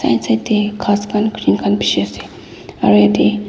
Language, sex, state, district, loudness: Nagamese, female, Nagaland, Dimapur, -15 LUFS